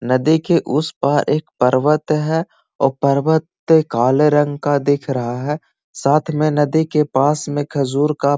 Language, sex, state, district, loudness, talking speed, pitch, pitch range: Magahi, male, Bihar, Gaya, -17 LUFS, 170 wpm, 145 Hz, 140-155 Hz